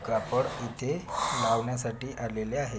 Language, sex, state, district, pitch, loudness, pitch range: Marathi, male, Maharashtra, Pune, 115 Hz, -31 LUFS, 115-125 Hz